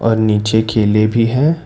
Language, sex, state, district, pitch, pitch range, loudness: Hindi, male, Karnataka, Bangalore, 110 Hz, 110-120 Hz, -14 LUFS